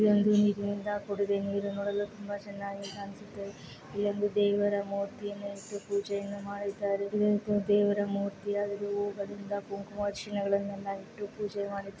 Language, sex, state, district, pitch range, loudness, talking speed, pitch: Kannada, female, Karnataka, Mysore, 200-205 Hz, -32 LUFS, 100 wpm, 205 Hz